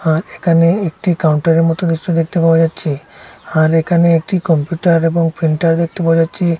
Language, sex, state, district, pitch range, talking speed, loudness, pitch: Bengali, male, Assam, Hailakandi, 160-170 Hz, 165 wpm, -14 LUFS, 165 Hz